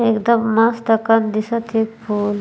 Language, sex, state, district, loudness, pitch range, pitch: Sadri, female, Chhattisgarh, Jashpur, -17 LUFS, 215-230 Hz, 225 Hz